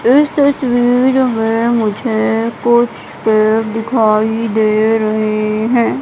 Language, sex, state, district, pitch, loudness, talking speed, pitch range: Hindi, female, Madhya Pradesh, Katni, 225 Hz, -13 LUFS, 70 wpm, 220-245 Hz